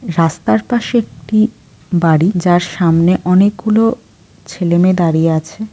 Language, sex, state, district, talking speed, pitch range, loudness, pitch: Bengali, female, West Bengal, Purulia, 115 wpm, 165-215 Hz, -14 LUFS, 175 Hz